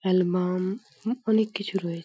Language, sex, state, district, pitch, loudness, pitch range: Bengali, female, West Bengal, Paschim Medinipur, 190 Hz, -27 LUFS, 180-220 Hz